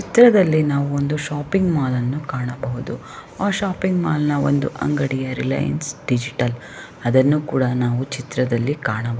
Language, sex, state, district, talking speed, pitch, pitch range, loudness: Kannada, female, Karnataka, Shimoga, 130 wpm, 140 Hz, 125-150 Hz, -20 LUFS